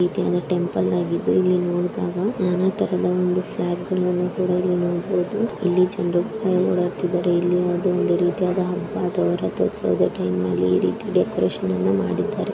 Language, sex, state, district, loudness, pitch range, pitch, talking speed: Kannada, female, Karnataka, Bijapur, -21 LUFS, 175-185 Hz, 180 Hz, 135 wpm